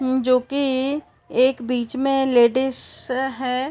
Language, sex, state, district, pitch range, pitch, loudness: Hindi, female, Uttar Pradesh, Varanasi, 255-270 Hz, 260 Hz, -21 LUFS